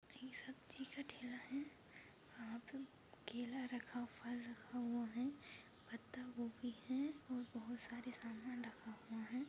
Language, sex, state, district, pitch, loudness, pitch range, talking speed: Hindi, female, Chhattisgarh, Kabirdham, 245 Hz, -50 LUFS, 235-260 Hz, 145 wpm